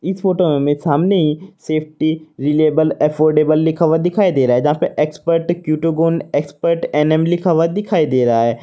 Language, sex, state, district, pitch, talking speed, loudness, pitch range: Hindi, male, Uttar Pradesh, Saharanpur, 155 Hz, 180 wpm, -16 LUFS, 150-170 Hz